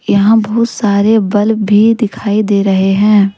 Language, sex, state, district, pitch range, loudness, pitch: Hindi, female, Jharkhand, Deoghar, 200-220 Hz, -11 LUFS, 210 Hz